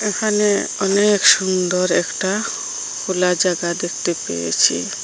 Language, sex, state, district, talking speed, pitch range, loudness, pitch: Bengali, female, Assam, Hailakandi, 95 wpm, 180-210 Hz, -17 LUFS, 190 Hz